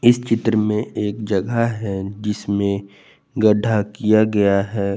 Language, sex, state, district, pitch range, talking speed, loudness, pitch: Hindi, male, Jharkhand, Garhwa, 100-110 Hz, 130 wpm, -19 LUFS, 105 Hz